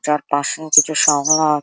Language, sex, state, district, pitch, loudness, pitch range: Bengali, female, West Bengal, Jhargram, 150 Hz, -15 LUFS, 145-155 Hz